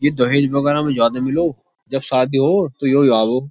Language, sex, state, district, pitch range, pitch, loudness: Hindi, male, Uttar Pradesh, Jyotiba Phule Nagar, 130-145 Hz, 135 Hz, -17 LUFS